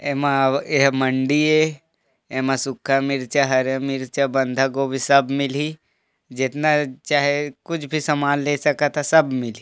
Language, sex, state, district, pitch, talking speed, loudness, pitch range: Chhattisgarhi, male, Chhattisgarh, Korba, 140 Hz, 135 wpm, -20 LUFS, 135-150 Hz